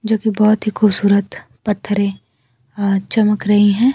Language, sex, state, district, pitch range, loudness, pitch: Hindi, female, Bihar, Kaimur, 200-215 Hz, -16 LUFS, 205 Hz